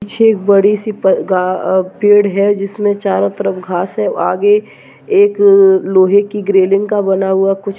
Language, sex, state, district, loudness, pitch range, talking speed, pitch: Hindi, female, Uttarakhand, Tehri Garhwal, -12 LUFS, 190-210 Hz, 160 wpm, 200 Hz